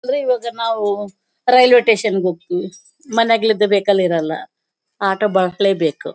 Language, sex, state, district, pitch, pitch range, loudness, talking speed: Kannada, female, Karnataka, Bellary, 205 Hz, 185-230 Hz, -16 LUFS, 115 wpm